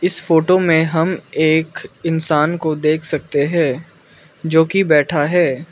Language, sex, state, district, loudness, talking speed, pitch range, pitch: Hindi, male, Arunachal Pradesh, Lower Dibang Valley, -16 LUFS, 145 wpm, 155-170 Hz, 160 Hz